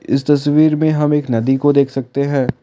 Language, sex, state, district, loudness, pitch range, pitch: Hindi, male, Assam, Kamrup Metropolitan, -15 LUFS, 135-150 Hz, 140 Hz